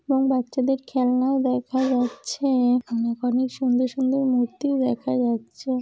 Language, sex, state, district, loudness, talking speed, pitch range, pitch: Bengali, female, West Bengal, Jalpaiguri, -23 LUFS, 135 wpm, 245-265 Hz, 255 Hz